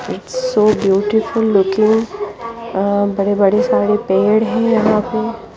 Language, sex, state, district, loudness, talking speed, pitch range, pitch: Hindi, female, Chandigarh, Chandigarh, -15 LUFS, 150 wpm, 200-230 Hz, 215 Hz